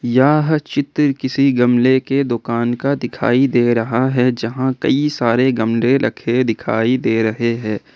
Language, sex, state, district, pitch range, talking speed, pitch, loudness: Hindi, male, Jharkhand, Ranchi, 115-135 Hz, 150 wpm, 125 Hz, -16 LUFS